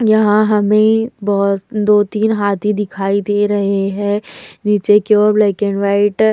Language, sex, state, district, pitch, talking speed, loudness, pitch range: Hindi, female, Uttar Pradesh, Hamirpur, 205 Hz, 170 wpm, -14 LUFS, 200-210 Hz